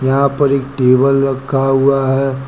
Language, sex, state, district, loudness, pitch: Hindi, male, Uttar Pradesh, Lucknow, -14 LUFS, 135 Hz